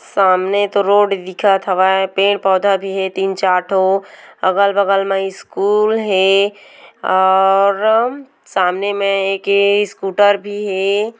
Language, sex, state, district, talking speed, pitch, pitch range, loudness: Hindi, female, Chhattisgarh, Korba, 120 wpm, 195 Hz, 190-205 Hz, -15 LUFS